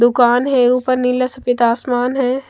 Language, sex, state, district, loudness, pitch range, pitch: Hindi, female, Maharashtra, Mumbai Suburban, -15 LUFS, 245-255 Hz, 250 Hz